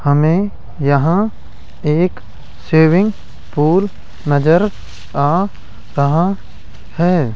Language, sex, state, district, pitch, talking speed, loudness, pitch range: Hindi, male, Rajasthan, Jaipur, 165 Hz, 75 wpm, -16 LUFS, 145-185 Hz